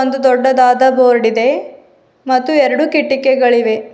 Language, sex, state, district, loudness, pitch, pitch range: Kannada, female, Karnataka, Bidar, -12 LUFS, 260 Hz, 245-270 Hz